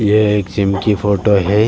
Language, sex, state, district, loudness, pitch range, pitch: Hindi, male, Uttar Pradesh, Jalaun, -15 LUFS, 100-105 Hz, 105 Hz